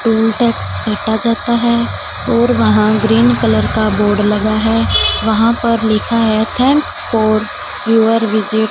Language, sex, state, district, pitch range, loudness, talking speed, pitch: Hindi, female, Punjab, Fazilka, 215-230 Hz, -13 LUFS, 150 wpm, 225 Hz